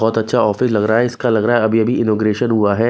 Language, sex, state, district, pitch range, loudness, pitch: Hindi, male, Bihar, West Champaran, 110-120 Hz, -16 LUFS, 110 Hz